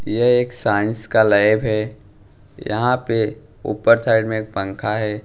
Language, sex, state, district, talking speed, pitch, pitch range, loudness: Hindi, male, Punjab, Pathankot, 160 wpm, 110 Hz, 105-115 Hz, -18 LUFS